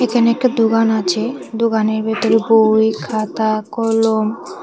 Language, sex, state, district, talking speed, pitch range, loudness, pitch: Bengali, female, Tripura, West Tripura, 115 wpm, 220-230 Hz, -16 LUFS, 225 Hz